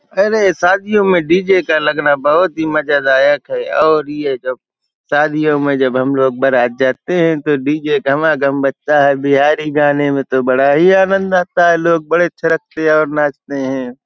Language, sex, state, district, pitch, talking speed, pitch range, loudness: Hindi, male, Uttar Pradesh, Hamirpur, 150 Hz, 190 wpm, 135-170 Hz, -13 LUFS